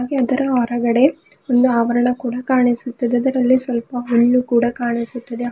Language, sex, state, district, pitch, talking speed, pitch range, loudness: Kannada, female, Karnataka, Bidar, 245 Hz, 120 wpm, 240-255 Hz, -18 LUFS